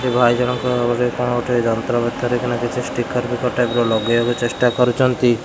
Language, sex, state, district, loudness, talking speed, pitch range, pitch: Odia, male, Odisha, Khordha, -18 LUFS, 185 wpm, 120-125 Hz, 120 Hz